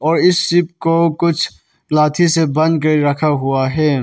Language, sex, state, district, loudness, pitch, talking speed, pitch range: Hindi, male, Arunachal Pradesh, Papum Pare, -15 LUFS, 155 Hz, 165 wpm, 150-165 Hz